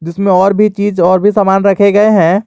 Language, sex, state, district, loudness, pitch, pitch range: Hindi, male, Jharkhand, Garhwa, -10 LUFS, 200 Hz, 185-205 Hz